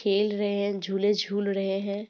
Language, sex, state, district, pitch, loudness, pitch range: Hindi, female, Bihar, Purnia, 200 Hz, -27 LUFS, 200-205 Hz